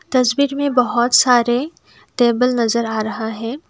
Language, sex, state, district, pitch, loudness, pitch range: Hindi, female, Assam, Kamrup Metropolitan, 245 Hz, -17 LUFS, 235-255 Hz